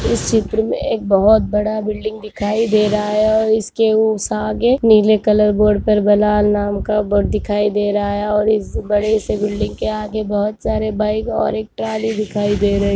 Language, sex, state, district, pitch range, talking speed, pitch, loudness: Hindi, female, Andhra Pradesh, Chittoor, 205-220 Hz, 185 wpm, 210 Hz, -16 LUFS